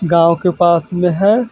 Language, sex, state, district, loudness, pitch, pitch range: Hindi, male, Bihar, Vaishali, -13 LUFS, 175 Hz, 170-185 Hz